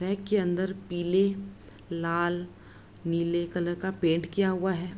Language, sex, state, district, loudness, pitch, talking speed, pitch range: Hindi, female, Bihar, Araria, -29 LUFS, 175 Hz, 145 wpm, 170-190 Hz